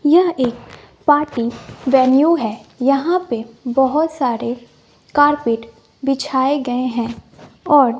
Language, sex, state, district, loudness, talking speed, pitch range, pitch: Hindi, female, Bihar, West Champaran, -17 LUFS, 105 wpm, 240-290 Hz, 265 Hz